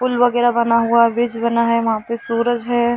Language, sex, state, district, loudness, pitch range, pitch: Hindi, female, Jharkhand, Sahebganj, -17 LUFS, 230-240 Hz, 235 Hz